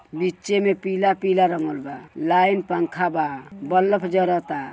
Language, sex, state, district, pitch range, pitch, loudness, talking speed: Bhojpuri, male, Uttar Pradesh, Gorakhpur, 170-190 Hz, 180 Hz, -21 LUFS, 140 wpm